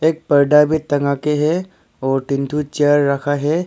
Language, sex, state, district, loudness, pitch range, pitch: Hindi, male, Arunachal Pradesh, Longding, -17 LUFS, 140-155 Hz, 145 Hz